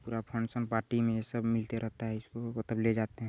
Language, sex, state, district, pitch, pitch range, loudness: Hindi, male, Chhattisgarh, Balrampur, 115 Hz, 110-115 Hz, -34 LUFS